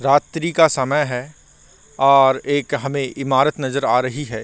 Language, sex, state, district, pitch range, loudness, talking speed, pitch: Hindi, male, Chhattisgarh, Korba, 130-145 Hz, -18 LUFS, 160 wpm, 135 Hz